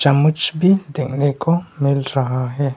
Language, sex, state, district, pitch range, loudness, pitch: Hindi, male, Arunachal Pradesh, Longding, 140-165 Hz, -18 LUFS, 145 Hz